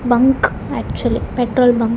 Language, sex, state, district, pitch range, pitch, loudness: Kannada, female, Karnataka, Raichur, 240-255 Hz, 245 Hz, -17 LUFS